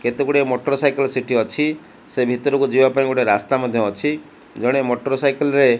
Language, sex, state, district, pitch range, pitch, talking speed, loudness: Odia, male, Odisha, Malkangiri, 125-140 Hz, 135 Hz, 195 wpm, -19 LUFS